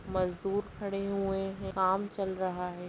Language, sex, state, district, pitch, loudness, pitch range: Hindi, female, Bihar, Vaishali, 195 Hz, -33 LUFS, 185-195 Hz